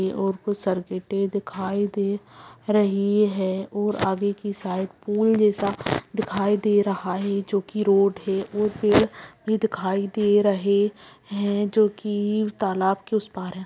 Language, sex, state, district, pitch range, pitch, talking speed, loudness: Hindi, female, Bihar, Purnia, 195-210 Hz, 200 Hz, 155 wpm, -23 LUFS